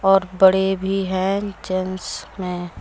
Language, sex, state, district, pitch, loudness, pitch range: Hindi, female, Jharkhand, Deoghar, 190 Hz, -20 LUFS, 185-195 Hz